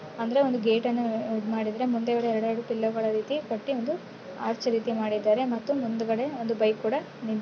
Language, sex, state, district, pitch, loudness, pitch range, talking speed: Kannada, female, Karnataka, Chamarajanagar, 230 Hz, -28 LUFS, 220-245 Hz, 185 wpm